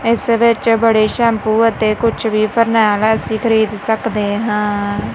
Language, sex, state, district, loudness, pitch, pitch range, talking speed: Punjabi, female, Punjab, Kapurthala, -15 LUFS, 220 Hz, 215-230 Hz, 140 wpm